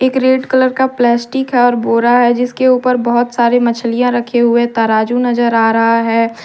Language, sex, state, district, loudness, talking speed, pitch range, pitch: Hindi, female, Jharkhand, Deoghar, -12 LUFS, 195 wpm, 235-250 Hz, 240 Hz